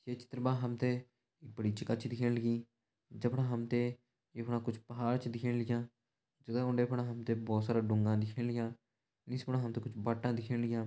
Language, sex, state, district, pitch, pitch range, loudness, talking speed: Hindi, male, Uttarakhand, Uttarkashi, 120 Hz, 115-125 Hz, -37 LUFS, 210 wpm